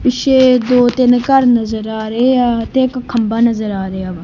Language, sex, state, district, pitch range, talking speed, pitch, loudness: Punjabi, male, Punjab, Kapurthala, 220-255 Hz, 210 wpm, 240 Hz, -13 LUFS